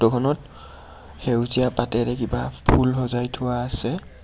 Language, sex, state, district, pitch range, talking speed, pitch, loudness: Assamese, male, Assam, Kamrup Metropolitan, 80-125 Hz, 100 wpm, 120 Hz, -23 LUFS